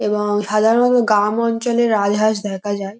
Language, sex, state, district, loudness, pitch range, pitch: Bengali, female, West Bengal, North 24 Parganas, -17 LUFS, 205-230 Hz, 215 Hz